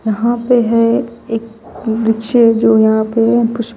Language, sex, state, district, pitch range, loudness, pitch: Hindi, female, Chandigarh, Chandigarh, 225-235 Hz, -13 LUFS, 230 Hz